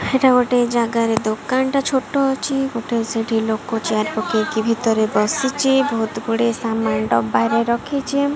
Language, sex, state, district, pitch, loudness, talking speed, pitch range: Odia, female, Odisha, Malkangiri, 230 Hz, -19 LUFS, 130 wpm, 220-265 Hz